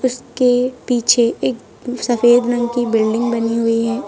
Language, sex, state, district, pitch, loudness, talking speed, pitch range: Hindi, female, Uttar Pradesh, Lucknow, 240 Hz, -16 LUFS, 145 wpm, 230-250 Hz